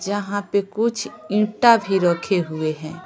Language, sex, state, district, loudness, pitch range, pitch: Hindi, female, Bihar, Patna, -20 LUFS, 175-210 Hz, 200 Hz